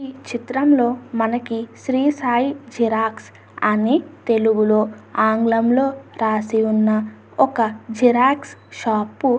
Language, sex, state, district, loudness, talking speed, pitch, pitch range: Telugu, female, Andhra Pradesh, Anantapur, -19 LUFS, 95 wpm, 230 Hz, 220-260 Hz